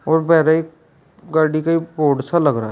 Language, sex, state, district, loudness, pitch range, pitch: Hindi, male, Uttar Pradesh, Shamli, -17 LUFS, 150-165 Hz, 160 Hz